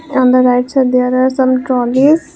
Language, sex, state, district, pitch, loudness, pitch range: English, female, Assam, Kamrup Metropolitan, 255 Hz, -12 LUFS, 250-270 Hz